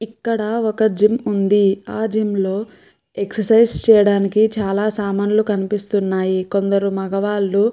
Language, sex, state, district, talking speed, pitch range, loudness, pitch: Telugu, female, Andhra Pradesh, Krishna, 115 wpm, 195-220 Hz, -17 LUFS, 205 Hz